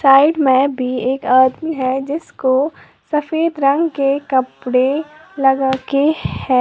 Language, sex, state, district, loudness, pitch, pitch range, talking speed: Hindi, female, Uttar Pradesh, Lalitpur, -16 LUFS, 275 Hz, 260-300 Hz, 125 wpm